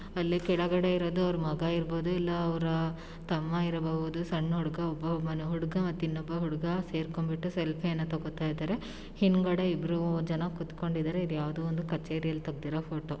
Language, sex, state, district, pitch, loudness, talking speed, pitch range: Kannada, female, Karnataka, Shimoga, 165 Hz, -32 LUFS, 145 wpm, 160-175 Hz